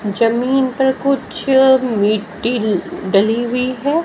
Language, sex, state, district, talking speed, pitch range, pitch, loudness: Hindi, female, Haryana, Jhajjar, 105 wpm, 215-265 Hz, 245 Hz, -16 LUFS